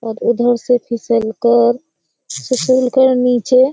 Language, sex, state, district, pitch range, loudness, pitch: Hindi, female, Bihar, Kishanganj, 235-255 Hz, -14 LUFS, 245 Hz